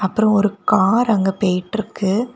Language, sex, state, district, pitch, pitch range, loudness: Tamil, female, Tamil Nadu, Kanyakumari, 205 Hz, 190-220 Hz, -17 LUFS